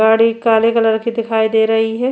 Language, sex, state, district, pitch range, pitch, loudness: Hindi, female, Goa, North and South Goa, 220-230 Hz, 225 Hz, -14 LUFS